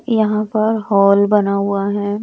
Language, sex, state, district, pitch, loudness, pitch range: Hindi, male, Chandigarh, Chandigarh, 205 Hz, -15 LUFS, 200-215 Hz